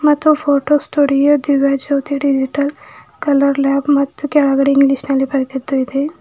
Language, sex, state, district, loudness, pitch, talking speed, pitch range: Kannada, female, Karnataka, Bidar, -15 LUFS, 280 Hz, 125 wpm, 275-295 Hz